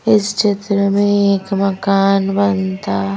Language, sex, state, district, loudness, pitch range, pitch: Hindi, female, Madhya Pradesh, Bhopal, -15 LUFS, 195-200 Hz, 195 Hz